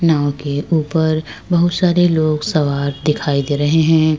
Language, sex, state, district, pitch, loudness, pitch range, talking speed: Hindi, female, Uttar Pradesh, Jyotiba Phule Nagar, 155 Hz, -16 LUFS, 145-160 Hz, 155 wpm